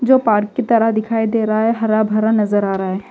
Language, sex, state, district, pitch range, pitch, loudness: Hindi, female, Punjab, Fazilka, 210-225 Hz, 220 Hz, -16 LUFS